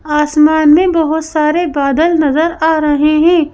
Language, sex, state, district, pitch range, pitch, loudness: Hindi, female, Madhya Pradesh, Bhopal, 300-325 Hz, 310 Hz, -11 LUFS